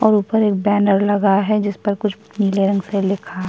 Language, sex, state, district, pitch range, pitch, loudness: Hindi, female, Chhattisgarh, Kabirdham, 195-210 Hz, 205 Hz, -18 LUFS